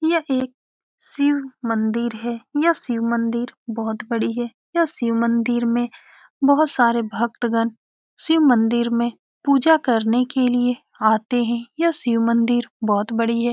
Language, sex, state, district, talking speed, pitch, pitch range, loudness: Hindi, female, Bihar, Saran, 145 wpm, 235 Hz, 230-265 Hz, -20 LUFS